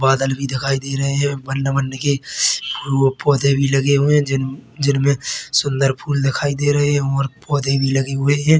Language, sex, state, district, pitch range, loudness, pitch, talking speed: Hindi, male, Chhattisgarh, Bilaspur, 135-140 Hz, -18 LUFS, 140 Hz, 195 wpm